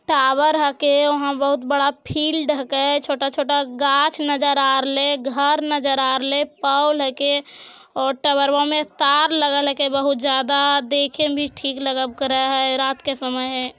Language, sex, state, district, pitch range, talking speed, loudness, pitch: Magahi, female, Bihar, Jamui, 275-290 Hz, 145 wpm, -18 LUFS, 280 Hz